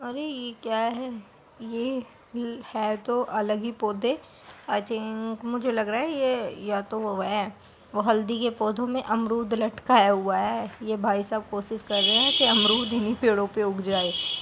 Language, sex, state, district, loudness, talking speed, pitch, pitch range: Hindi, female, Bihar, Supaul, -25 LUFS, 195 wpm, 225 Hz, 210-240 Hz